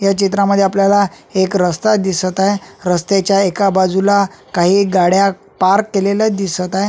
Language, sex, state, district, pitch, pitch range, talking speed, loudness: Marathi, male, Maharashtra, Solapur, 195 Hz, 185-200 Hz, 140 wpm, -14 LUFS